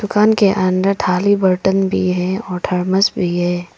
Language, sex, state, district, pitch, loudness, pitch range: Hindi, female, Arunachal Pradesh, Papum Pare, 190 Hz, -16 LUFS, 180-195 Hz